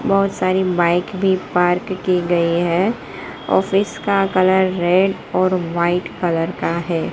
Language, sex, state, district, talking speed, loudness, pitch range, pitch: Hindi, female, Gujarat, Gandhinagar, 135 wpm, -18 LUFS, 175-190 Hz, 185 Hz